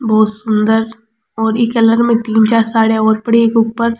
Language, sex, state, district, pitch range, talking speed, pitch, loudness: Rajasthani, female, Rajasthan, Churu, 220-230 Hz, 210 wpm, 225 Hz, -13 LUFS